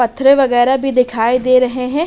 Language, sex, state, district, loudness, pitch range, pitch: Hindi, female, Uttar Pradesh, Hamirpur, -13 LUFS, 245-270 Hz, 255 Hz